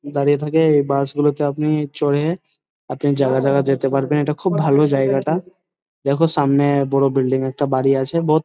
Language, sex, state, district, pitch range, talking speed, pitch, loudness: Bengali, male, West Bengal, Dakshin Dinajpur, 135-150 Hz, 170 wpm, 145 Hz, -18 LUFS